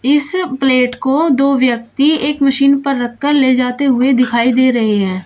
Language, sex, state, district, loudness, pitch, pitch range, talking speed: Hindi, female, Uttar Pradesh, Shamli, -13 LUFS, 265 Hz, 250-280 Hz, 180 wpm